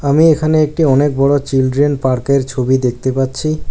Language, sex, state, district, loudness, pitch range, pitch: Bengali, male, West Bengal, Alipurduar, -14 LUFS, 130-150 Hz, 140 Hz